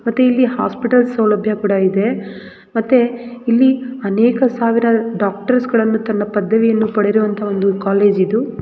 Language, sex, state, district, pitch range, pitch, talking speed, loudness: Kannada, female, Karnataka, Gulbarga, 205-240 Hz, 225 Hz, 130 wpm, -15 LUFS